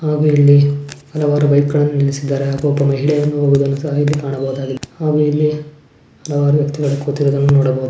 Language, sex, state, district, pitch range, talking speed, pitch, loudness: Kannada, female, Karnataka, Shimoga, 140-150 Hz, 135 wpm, 145 Hz, -15 LUFS